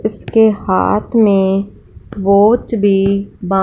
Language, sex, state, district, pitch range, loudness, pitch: Hindi, female, Punjab, Fazilka, 195-215 Hz, -13 LUFS, 200 Hz